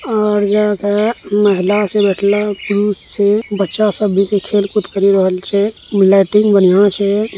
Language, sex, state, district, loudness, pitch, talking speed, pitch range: Hindi, male, Bihar, Araria, -14 LUFS, 205 Hz, 155 wpm, 200-210 Hz